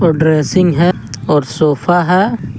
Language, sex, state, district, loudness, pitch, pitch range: Hindi, male, Jharkhand, Garhwa, -13 LUFS, 165 Hz, 150-180 Hz